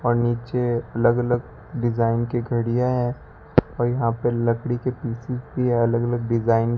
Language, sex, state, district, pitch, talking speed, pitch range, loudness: Hindi, male, Rajasthan, Bikaner, 120 Hz, 170 wpm, 115-120 Hz, -23 LUFS